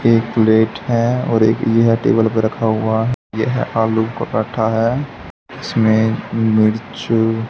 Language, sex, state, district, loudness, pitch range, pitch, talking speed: Hindi, male, Haryana, Charkhi Dadri, -16 LUFS, 110-115 Hz, 115 Hz, 135 wpm